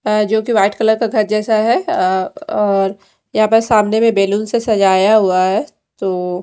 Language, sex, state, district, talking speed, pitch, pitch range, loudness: Hindi, female, Odisha, Malkangiri, 185 wpm, 215 Hz, 195-220 Hz, -15 LUFS